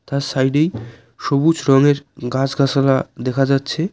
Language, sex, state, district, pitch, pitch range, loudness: Bengali, male, West Bengal, Cooch Behar, 135 Hz, 130-145 Hz, -17 LUFS